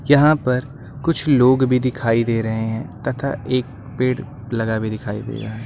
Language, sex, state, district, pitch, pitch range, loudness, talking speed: Hindi, male, Uttar Pradesh, Lucknow, 125 Hz, 115-135 Hz, -20 LUFS, 190 wpm